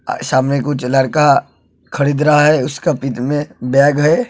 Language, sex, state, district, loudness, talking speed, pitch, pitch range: Hindi, male, Uttar Pradesh, Hamirpur, -14 LUFS, 170 wpm, 145 Hz, 135-150 Hz